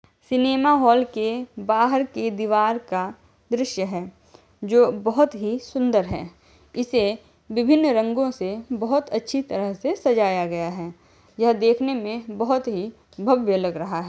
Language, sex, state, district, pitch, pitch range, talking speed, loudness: Hindi, female, Uttar Pradesh, Jyotiba Phule Nagar, 230 Hz, 205-255 Hz, 145 wpm, -22 LUFS